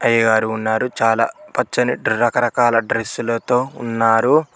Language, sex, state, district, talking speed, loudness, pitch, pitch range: Telugu, male, Telangana, Mahabubabad, 90 wpm, -18 LUFS, 115 Hz, 115-120 Hz